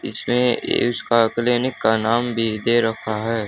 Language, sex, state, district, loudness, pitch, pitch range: Hindi, male, Haryana, Charkhi Dadri, -20 LUFS, 115 Hz, 110-120 Hz